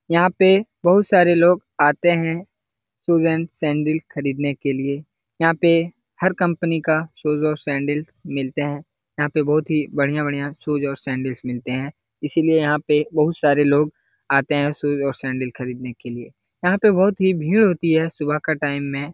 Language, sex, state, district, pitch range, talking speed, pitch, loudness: Hindi, male, Bihar, Jahanabad, 140-165 Hz, 180 wpm, 150 Hz, -20 LUFS